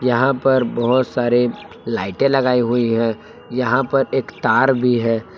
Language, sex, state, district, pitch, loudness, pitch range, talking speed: Hindi, male, Jharkhand, Palamu, 125 Hz, -18 LUFS, 120-130 Hz, 155 wpm